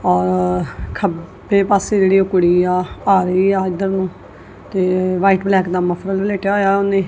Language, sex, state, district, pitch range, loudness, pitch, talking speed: Punjabi, female, Punjab, Kapurthala, 180-195 Hz, -16 LUFS, 190 Hz, 170 wpm